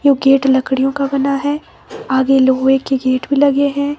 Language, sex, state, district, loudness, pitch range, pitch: Hindi, male, Himachal Pradesh, Shimla, -14 LUFS, 265-280 Hz, 270 Hz